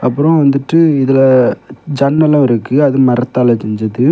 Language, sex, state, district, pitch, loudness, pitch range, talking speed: Tamil, male, Tamil Nadu, Kanyakumari, 135 Hz, -11 LUFS, 125-145 Hz, 115 wpm